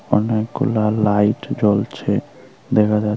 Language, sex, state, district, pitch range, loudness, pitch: Bengali, female, Tripura, Unakoti, 105-110 Hz, -18 LUFS, 105 Hz